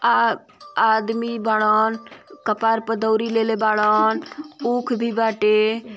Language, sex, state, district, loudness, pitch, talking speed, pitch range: Bhojpuri, female, Uttar Pradesh, Ghazipur, -20 LUFS, 225 Hz, 110 wpm, 220-235 Hz